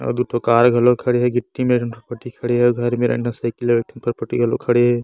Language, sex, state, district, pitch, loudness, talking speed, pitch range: Chhattisgarhi, male, Chhattisgarh, Bastar, 120 Hz, -18 LUFS, 260 wpm, 120-125 Hz